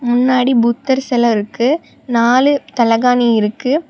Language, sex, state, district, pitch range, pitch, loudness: Tamil, female, Tamil Nadu, Namakkal, 235-265 Hz, 245 Hz, -14 LUFS